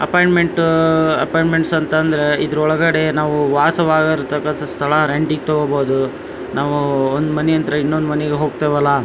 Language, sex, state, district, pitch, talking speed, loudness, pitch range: Kannada, male, Karnataka, Dharwad, 155 Hz, 120 wpm, -16 LUFS, 145-160 Hz